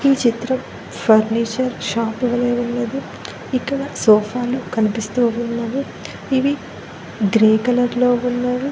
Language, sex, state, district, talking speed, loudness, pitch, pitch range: Telugu, female, Telangana, Mahabubabad, 105 wpm, -19 LUFS, 245 Hz, 225-255 Hz